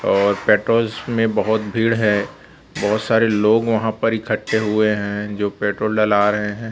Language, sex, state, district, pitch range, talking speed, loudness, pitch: Hindi, male, Chhattisgarh, Raipur, 105-115 Hz, 170 wpm, -18 LUFS, 105 Hz